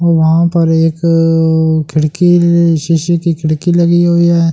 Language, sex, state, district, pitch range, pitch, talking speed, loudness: Hindi, male, Delhi, New Delhi, 160-170 Hz, 165 Hz, 160 wpm, -11 LUFS